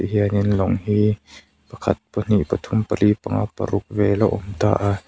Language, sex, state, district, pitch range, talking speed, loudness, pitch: Mizo, male, Mizoram, Aizawl, 100-105 Hz, 155 wpm, -21 LUFS, 105 Hz